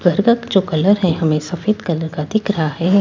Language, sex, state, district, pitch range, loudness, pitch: Hindi, female, Bihar, Katihar, 160-205 Hz, -17 LUFS, 180 Hz